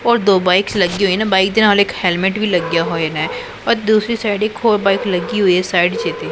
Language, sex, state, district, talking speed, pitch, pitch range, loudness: Punjabi, female, Punjab, Pathankot, 245 wpm, 195 Hz, 180-215 Hz, -15 LUFS